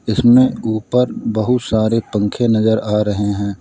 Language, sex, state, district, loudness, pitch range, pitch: Hindi, male, Uttar Pradesh, Lalitpur, -16 LUFS, 105-120 Hz, 110 Hz